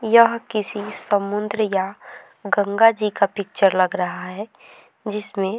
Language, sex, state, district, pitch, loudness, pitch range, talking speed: Hindi, female, Bihar, Vaishali, 205 Hz, -21 LUFS, 195-220 Hz, 140 wpm